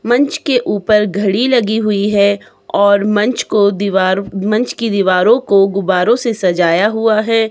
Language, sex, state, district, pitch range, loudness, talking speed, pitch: Hindi, female, Himachal Pradesh, Shimla, 195-225 Hz, -13 LUFS, 160 wpm, 210 Hz